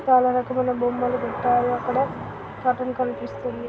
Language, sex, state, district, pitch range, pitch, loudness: Telugu, female, Andhra Pradesh, Srikakulam, 245-255 Hz, 250 Hz, -23 LUFS